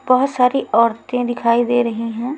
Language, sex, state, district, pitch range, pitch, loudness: Hindi, female, Chhattisgarh, Raipur, 230-255 Hz, 245 Hz, -17 LUFS